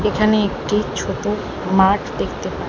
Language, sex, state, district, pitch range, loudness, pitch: Bengali, female, West Bengal, Alipurduar, 200-210 Hz, -19 LUFS, 210 Hz